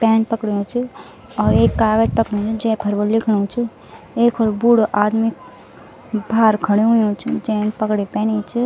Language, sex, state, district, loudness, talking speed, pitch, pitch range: Garhwali, female, Uttarakhand, Tehri Garhwal, -18 LUFS, 160 wpm, 220 Hz, 210-225 Hz